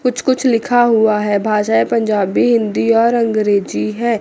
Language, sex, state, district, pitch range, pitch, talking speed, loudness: Hindi, female, Chandigarh, Chandigarh, 210-235 Hz, 225 Hz, 155 wpm, -14 LUFS